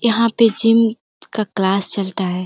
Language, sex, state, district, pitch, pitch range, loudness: Hindi, female, Uttar Pradesh, Gorakhpur, 215 Hz, 190-230 Hz, -15 LUFS